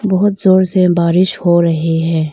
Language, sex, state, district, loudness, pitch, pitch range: Hindi, female, Arunachal Pradesh, Longding, -12 LUFS, 175 Hz, 165-185 Hz